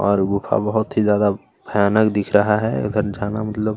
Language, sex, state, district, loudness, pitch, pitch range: Hindi, male, Chhattisgarh, Kabirdham, -19 LUFS, 105 Hz, 100-110 Hz